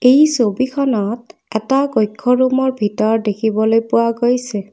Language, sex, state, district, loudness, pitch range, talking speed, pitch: Assamese, female, Assam, Kamrup Metropolitan, -16 LUFS, 220-260 Hz, 125 wpm, 230 Hz